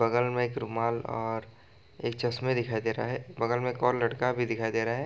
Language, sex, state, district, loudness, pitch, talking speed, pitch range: Hindi, male, Bihar, East Champaran, -30 LUFS, 115 Hz, 250 wpm, 115-125 Hz